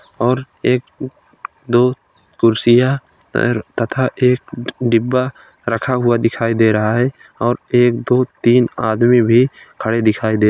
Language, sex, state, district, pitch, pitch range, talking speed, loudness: Hindi, male, Uttar Pradesh, Gorakhpur, 120 Hz, 115-125 Hz, 135 wpm, -16 LUFS